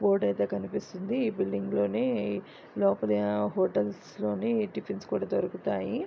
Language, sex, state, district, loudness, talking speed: Telugu, female, Andhra Pradesh, Visakhapatnam, -30 LUFS, 130 wpm